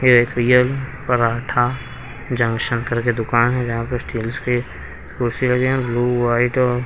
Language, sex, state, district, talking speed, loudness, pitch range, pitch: Hindi, male, Haryana, Rohtak, 155 wpm, -19 LUFS, 120-125 Hz, 120 Hz